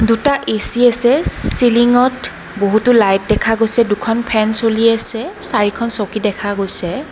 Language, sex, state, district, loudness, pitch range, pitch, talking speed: Assamese, female, Assam, Kamrup Metropolitan, -14 LUFS, 215-240 Hz, 225 Hz, 135 wpm